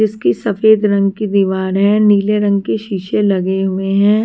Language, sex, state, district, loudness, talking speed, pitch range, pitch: Hindi, female, Maharashtra, Washim, -14 LUFS, 185 wpm, 195-210 Hz, 200 Hz